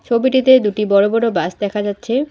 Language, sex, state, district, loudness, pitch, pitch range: Bengali, female, West Bengal, Alipurduar, -15 LUFS, 210 Hz, 205-255 Hz